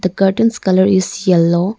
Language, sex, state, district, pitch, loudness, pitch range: English, female, Arunachal Pradesh, Lower Dibang Valley, 185 Hz, -14 LUFS, 185-195 Hz